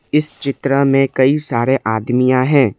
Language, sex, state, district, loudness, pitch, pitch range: Hindi, male, Assam, Kamrup Metropolitan, -15 LUFS, 135 Hz, 130-140 Hz